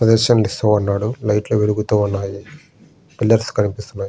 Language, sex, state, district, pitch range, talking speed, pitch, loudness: Telugu, male, Andhra Pradesh, Srikakulam, 100-110 Hz, 130 wpm, 105 Hz, -18 LUFS